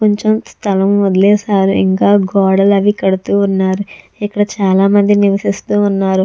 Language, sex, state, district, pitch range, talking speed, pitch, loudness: Telugu, female, Andhra Pradesh, Chittoor, 195-205 Hz, 125 wpm, 200 Hz, -12 LUFS